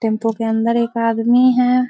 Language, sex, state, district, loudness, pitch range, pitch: Hindi, female, Bihar, Begusarai, -16 LUFS, 225-250 Hz, 230 Hz